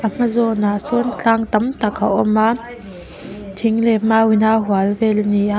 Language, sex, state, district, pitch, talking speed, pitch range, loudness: Mizo, female, Mizoram, Aizawl, 220 Hz, 215 wpm, 205-225 Hz, -17 LUFS